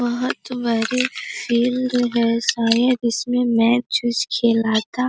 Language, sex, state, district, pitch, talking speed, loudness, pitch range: Hindi, female, Bihar, Sitamarhi, 240 Hz, 140 wpm, -19 LUFS, 230-250 Hz